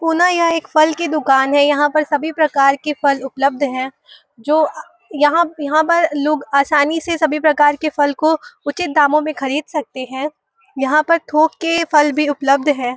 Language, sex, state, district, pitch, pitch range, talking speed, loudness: Hindi, female, Uttar Pradesh, Varanasi, 300 Hz, 285-315 Hz, 195 wpm, -16 LUFS